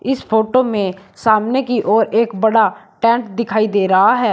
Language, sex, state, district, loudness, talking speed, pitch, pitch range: Hindi, male, Uttar Pradesh, Shamli, -15 LUFS, 180 wpm, 220 Hz, 210-235 Hz